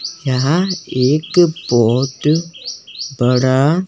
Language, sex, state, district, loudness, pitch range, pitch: Hindi, male, Chandigarh, Chandigarh, -15 LUFS, 130-170 Hz, 150 Hz